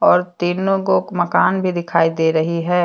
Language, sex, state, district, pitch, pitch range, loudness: Hindi, female, Jharkhand, Deoghar, 175 Hz, 165-185 Hz, -17 LUFS